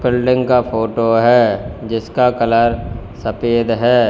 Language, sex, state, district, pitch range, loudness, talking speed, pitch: Hindi, male, Uttar Pradesh, Lalitpur, 115-125 Hz, -15 LUFS, 115 wpm, 115 Hz